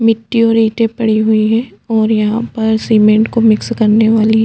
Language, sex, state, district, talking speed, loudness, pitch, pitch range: Hindi, female, Chhattisgarh, Jashpur, 190 wpm, -12 LUFS, 220 Hz, 220-225 Hz